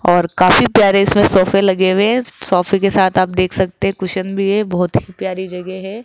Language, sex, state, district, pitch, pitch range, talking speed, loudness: Hindi, female, Rajasthan, Jaipur, 190 Hz, 185-195 Hz, 230 wpm, -14 LUFS